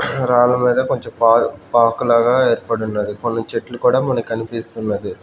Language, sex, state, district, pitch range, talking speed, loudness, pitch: Telugu, male, Andhra Pradesh, Manyam, 115-120 Hz, 115 wpm, -17 LUFS, 115 Hz